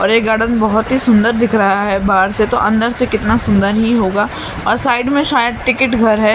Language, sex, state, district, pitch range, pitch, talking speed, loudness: Hindi, female, Maharashtra, Mumbai Suburban, 215-240 Hz, 225 Hz, 235 wpm, -13 LUFS